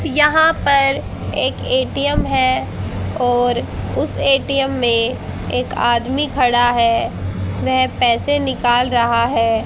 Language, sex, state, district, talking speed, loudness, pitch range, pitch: Hindi, female, Haryana, Charkhi Dadri, 110 wpm, -16 LUFS, 230-275 Hz, 245 Hz